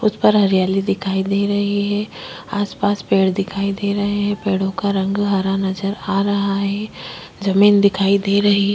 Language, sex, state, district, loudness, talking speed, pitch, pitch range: Hindi, female, Chhattisgarh, Kabirdham, -18 LUFS, 170 wpm, 200 Hz, 195-205 Hz